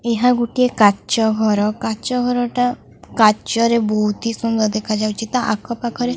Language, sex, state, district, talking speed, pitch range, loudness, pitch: Odia, female, Odisha, Khordha, 125 wpm, 215-245 Hz, -18 LUFS, 230 Hz